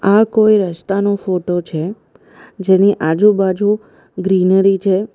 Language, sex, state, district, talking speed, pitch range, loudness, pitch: Gujarati, female, Gujarat, Valsad, 105 wpm, 185-205 Hz, -15 LUFS, 195 Hz